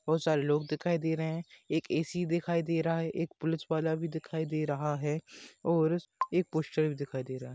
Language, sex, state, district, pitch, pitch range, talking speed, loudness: Hindi, male, Maharashtra, Chandrapur, 160 Hz, 155-165 Hz, 230 wpm, -32 LUFS